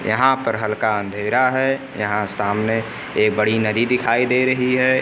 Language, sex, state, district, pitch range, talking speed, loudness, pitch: Hindi, male, Uttar Pradesh, Lucknow, 105-125 Hz, 155 wpm, -19 LUFS, 110 Hz